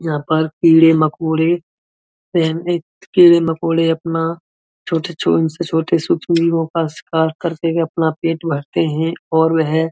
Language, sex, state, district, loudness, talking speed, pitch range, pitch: Hindi, male, Uttar Pradesh, Muzaffarnagar, -16 LUFS, 115 wpm, 160-170 Hz, 165 Hz